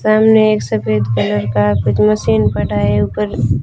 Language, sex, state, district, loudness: Hindi, female, Rajasthan, Bikaner, -14 LUFS